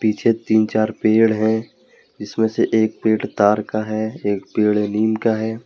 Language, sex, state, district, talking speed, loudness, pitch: Hindi, male, Jharkhand, Deoghar, 180 wpm, -19 LUFS, 110 Hz